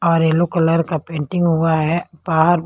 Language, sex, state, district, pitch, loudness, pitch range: Hindi, female, Punjab, Pathankot, 165 Hz, -17 LUFS, 160-170 Hz